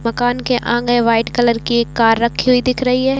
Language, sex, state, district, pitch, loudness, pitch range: Hindi, female, Chhattisgarh, Raigarh, 240 Hz, -15 LUFS, 235-250 Hz